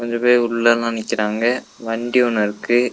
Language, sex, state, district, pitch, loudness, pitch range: Tamil, male, Tamil Nadu, Nilgiris, 120 Hz, -18 LUFS, 115-120 Hz